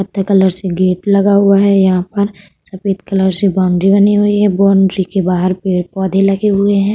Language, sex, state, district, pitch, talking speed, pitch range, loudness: Hindi, female, Uttar Pradesh, Budaun, 195 Hz, 200 wpm, 190-200 Hz, -12 LUFS